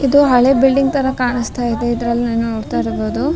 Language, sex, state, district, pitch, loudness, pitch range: Kannada, female, Karnataka, Raichur, 245 Hz, -16 LUFS, 235-270 Hz